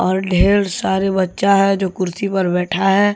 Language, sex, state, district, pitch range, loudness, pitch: Hindi, male, Jharkhand, Deoghar, 185-195 Hz, -16 LUFS, 195 Hz